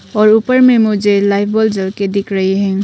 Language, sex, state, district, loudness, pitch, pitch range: Hindi, female, Arunachal Pradesh, Papum Pare, -12 LUFS, 205 Hz, 200-220 Hz